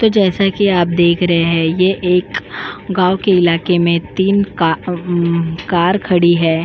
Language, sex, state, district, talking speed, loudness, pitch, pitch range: Hindi, female, Goa, North and South Goa, 170 wpm, -14 LUFS, 180 Hz, 170-190 Hz